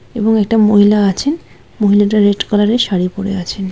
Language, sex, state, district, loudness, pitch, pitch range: Bengali, female, West Bengal, Malda, -13 LUFS, 205 Hz, 200-220 Hz